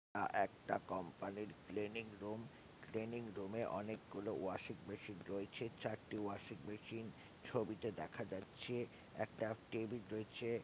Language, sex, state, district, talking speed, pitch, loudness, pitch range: Bengali, male, West Bengal, North 24 Parganas, 120 wpm, 110 Hz, -46 LUFS, 100-115 Hz